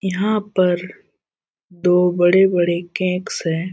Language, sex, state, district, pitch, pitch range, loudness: Hindi, male, Jharkhand, Jamtara, 180 Hz, 175-190 Hz, -18 LUFS